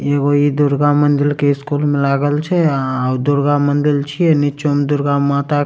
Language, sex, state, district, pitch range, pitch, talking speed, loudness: Maithili, male, Bihar, Supaul, 140-145 Hz, 145 Hz, 200 wpm, -15 LUFS